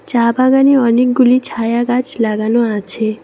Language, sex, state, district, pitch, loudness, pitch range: Bengali, female, West Bengal, Cooch Behar, 240 Hz, -13 LUFS, 230-255 Hz